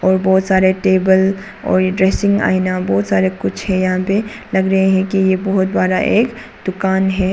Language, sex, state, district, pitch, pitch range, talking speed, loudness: Hindi, female, Arunachal Pradesh, Papum Pare, 190 Hz, 185-195 Hz, 180 wpm, -15 LUFS